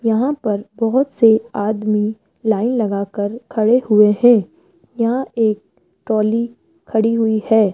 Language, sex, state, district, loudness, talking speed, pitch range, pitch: Hindi, female, Rajasthan, Jaipur, -17 LUFS, 125 wpm, 210-235 Hz, 220 Hz